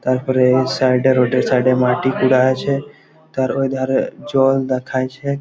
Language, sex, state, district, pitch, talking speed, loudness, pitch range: Bengali, male, West Bengal, Malda, 130 Hz, 175 wpm, -17 LUFS, 130-135 Hz